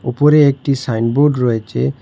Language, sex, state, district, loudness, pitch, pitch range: Bengali, male, Assam, Hailakandi, -14 LUFS, 125 Hz, 115-145 Hz